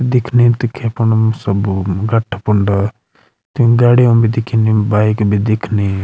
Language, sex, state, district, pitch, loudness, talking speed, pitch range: Garhwali, male, Uttarakhand, Uttarkashi, 110 Hz, -14 LUFS, 130 wpm, 105-120 Hz